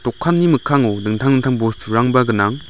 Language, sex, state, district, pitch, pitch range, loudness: Garo, male, Meghalaya, West Garo Hills, 125 Hz, 115-140 Hz, -16 LUFS